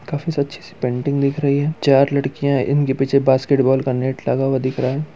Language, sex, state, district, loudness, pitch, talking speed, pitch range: Hindi, male, Bihar, Muzaffarpur, -18 LUFS, 140 Hz, 230 wpm, 130-140 Hz